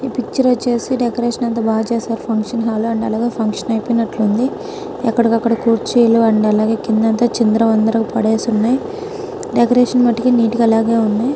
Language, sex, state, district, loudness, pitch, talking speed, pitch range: Telugu, female, Telangana, Karimnagar, -16 LUFS, 230 Hz, 130 wpm, 225-245 Hz